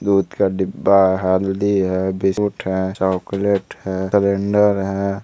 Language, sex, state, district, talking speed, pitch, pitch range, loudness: Hindi, male, Bihar, Bhagalpur, 135 wpm, 95 Hz, 95-100 Hz, -18 LUFS